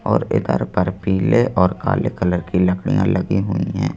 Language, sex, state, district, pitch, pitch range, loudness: Hindi, male, Madhya Pradesh, Bhopal, 90 Hz, 90-95 Hz, -19 LUFS